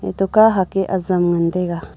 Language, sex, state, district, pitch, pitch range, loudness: Wancho, female, Arunachal Pradesh, Longding, 180 Hz, 170-195 Hz, -17 LUFS